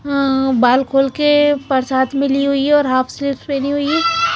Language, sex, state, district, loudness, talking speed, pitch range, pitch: Hindi, female, Bihar, Katihar, -15 LUFS, 220 wpm, 265-290 Hz, 280 Hz